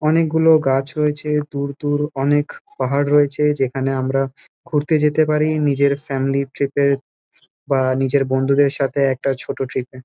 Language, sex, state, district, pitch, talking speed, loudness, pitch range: Bengali, male, West Bengal, Kolkata, 140 Hz, 150 wpm, -19 LUFS, 135-150 Hz